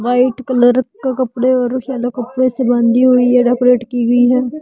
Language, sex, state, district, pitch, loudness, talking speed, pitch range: Hindi, female, Bihar, Patna, 250 Hz, -14 LUFS, 195 wpm, 245-255 Hz